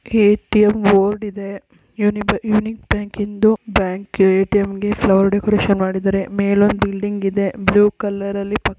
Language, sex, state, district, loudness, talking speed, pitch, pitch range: Kannada, female, Karnataka, Belgaum, -17 LUFS, 130 wpm, 200 Hz, 195-210 Hz